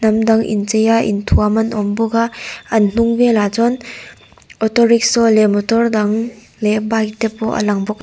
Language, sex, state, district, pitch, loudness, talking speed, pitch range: Mizo, female, Mizoram, Aizawl, 220 Hz, -15 LUFS, 180 wpm, 210-230 Hz